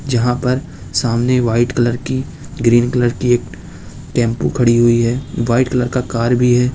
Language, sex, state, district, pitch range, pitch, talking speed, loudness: Hindi, male, Uttar Pradesh, Lucknow, 120-125 Hz, 120 Hz, 180 wpm, -16 LUFS